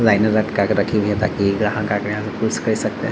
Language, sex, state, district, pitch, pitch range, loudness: Hindi, male, Bihar, Vaishali, 105 Hz, 100-105 Hz, -19 LUFS